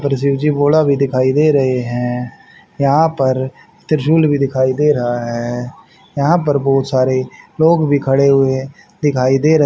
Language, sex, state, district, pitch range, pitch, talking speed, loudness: Hindi, male, Haryana, Rohtak, 130-150 Hz, 140 Hz, 185 wpm, -15 LUFS